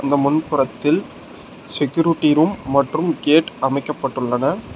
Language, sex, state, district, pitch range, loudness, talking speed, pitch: Tamil, male, Tamil Nadu, Nilgiris, 135-155 Hz, -19 LUFS, 100 wpm, 145 Hz